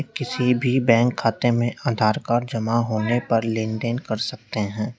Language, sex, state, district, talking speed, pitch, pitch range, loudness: Hindi, male, Uttar Pradesh, Lalitpur, 170 wpm, 120 Hz, 110-125 Hz, -22 LUFS